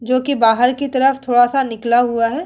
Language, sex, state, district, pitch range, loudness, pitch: Hindi, female, Uttar Pradesh, Hamirpur, 235-270 Hz, -15 LUFS, 250 Hz